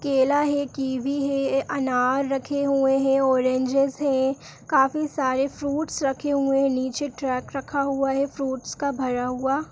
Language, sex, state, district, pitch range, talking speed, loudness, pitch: Kumaoni, female, Uttarakhand, Uttarkashi, 265-280 Hz, 155 wpm, -24 LUFS, 275 Hz